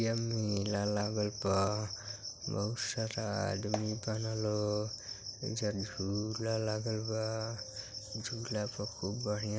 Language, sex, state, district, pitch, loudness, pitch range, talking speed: Bhojpuri, male, Uttar Pradesh, Gorakhpur, 105 Hz, -36 LUFS, 105-110 Hz, 110 wpm